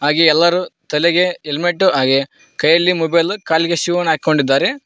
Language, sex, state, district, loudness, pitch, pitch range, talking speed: Kannada, male, Karnataka, Koppal, -15 LUFS, 170 Hz, 155-175 Hz, 135 wpm